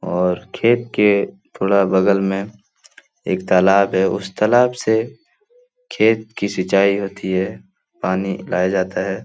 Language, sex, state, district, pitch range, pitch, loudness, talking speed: Hindi, male, Bihar, Lakhisarai, 95-110 Hz, 100 Hz, -18 LUFS, 145 wpm